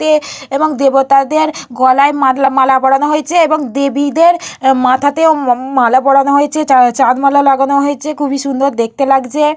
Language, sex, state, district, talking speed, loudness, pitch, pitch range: Bengali, female, West Bengal, Purulia, 155 wpm, -11 LUFS, 275 Hz, 265-300 Hz